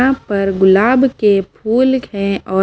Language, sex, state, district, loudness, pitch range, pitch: Hindi, female, Maharashtra, Mumbai Suburban, -14 LUFS, 195-255 Hz, 205 Hz